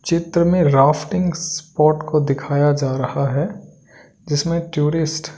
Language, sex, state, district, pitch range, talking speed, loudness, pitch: Hindi, male, Delhi, New Delhi, 145-170 Hz, 135 wpm, -18 LUFS, 155 Hz